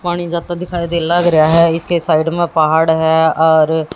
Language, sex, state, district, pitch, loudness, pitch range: Hindi, female, Haryana, Jhajjar, 165 Hz, -13 LUFS, 160-175 Hz